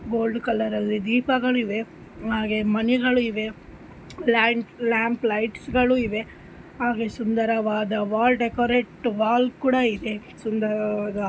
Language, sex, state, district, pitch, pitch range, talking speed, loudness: Kannada, female, Karnataka, Shimoga, 225 Hz, 215-240 Hz, 105 wpm, -23 LUFS